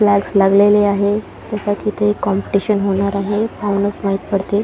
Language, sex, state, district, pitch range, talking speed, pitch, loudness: Marathi, female, Maharashtra, Chandrapur, 200-210 Hz, 140 wpm, 205 Hz, -16 LUFS